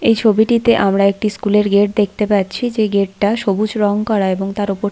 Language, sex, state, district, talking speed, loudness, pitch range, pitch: Bengali, female, West Bengal, Paschim Medinipur, 220 wpm, -15 LUFS, 200-215 Hz, 205 Hz